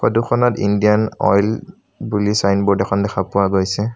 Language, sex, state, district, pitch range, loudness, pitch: Assamese, male, Assam, Sonitpur, 100-110 Hz, -17 LUFS, 100 Hz